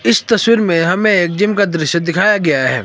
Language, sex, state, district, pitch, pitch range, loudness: Hindi, male, Himachal Pradesh, Shimla, 180 Hz, 165-210 Hz, -13 LUFS